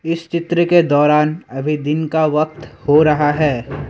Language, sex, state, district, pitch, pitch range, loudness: Hindi, male, Assam, Sonitpur, 155 Hz, 145-165 Hz, -16 LUFS